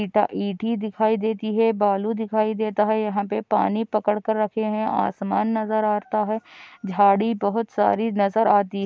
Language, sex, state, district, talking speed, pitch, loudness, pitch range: Hindi, female, Andhra Pradesh, Anantapur, 175 wpm, 215 Hz, -22 LUFS, 205-220 Hz